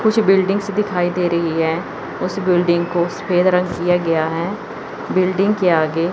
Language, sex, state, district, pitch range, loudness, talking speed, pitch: Hindi, female, Chandigarh, Chandigarh, 170-195 Hz, -18 LUFS, 165 wpm, 180 Hz